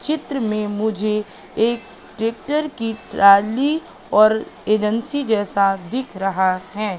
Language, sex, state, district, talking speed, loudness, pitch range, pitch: Hindi, female, Madhya Pradesh, Katni, 110 wpm, -19 LUFS, 205-245 Hz, 215 Hz